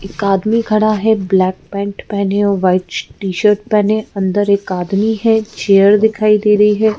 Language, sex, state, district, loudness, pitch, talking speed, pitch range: Hindi, female, Madhya Pradesh, Bhopal, -14 LUFS, 205 Hz, 170 wpm, 195-215 Hz